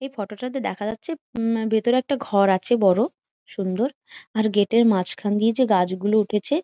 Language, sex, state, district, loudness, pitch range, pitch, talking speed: Bengali, female, West Bengal, Jhargram, -22 LUFS, 205-250 Hz, 220 Hz, 200 wpm